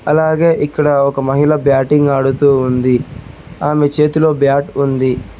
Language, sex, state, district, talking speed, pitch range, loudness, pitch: Telugu, male, Telangana, Hyderabad, 120 wpm, 135-150 Hz, -13 LUFS, 140 Hz